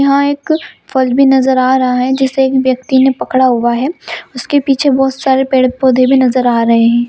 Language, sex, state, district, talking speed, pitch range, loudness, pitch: Hindi, female, Bihar, Purnia, 220 wpm, 255-270 Hz, -11 LUFS, 260 Hz